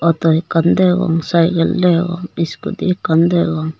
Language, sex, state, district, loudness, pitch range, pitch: Chakma, female, Tripura, Unakoti, -15 LUFS, 165-180 Hz, 170 Hz